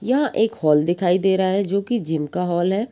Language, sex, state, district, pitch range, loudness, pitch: Hindi, female, Bihar, Jamui, 175-220 Hz, -20 LUFS, 190 Hz